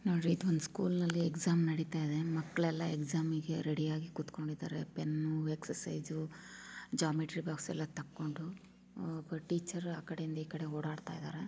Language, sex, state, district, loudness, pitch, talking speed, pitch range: Kannada, female, Karnataka, Chamarajanagar, -38 LUFS, 160 Hz, 140 wpm, 155-170 Hz